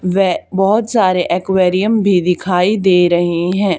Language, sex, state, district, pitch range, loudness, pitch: Hindi, female, Haryana, Charkhi Dadri, 180-195 Hz, -14 LUFS, 185 Hz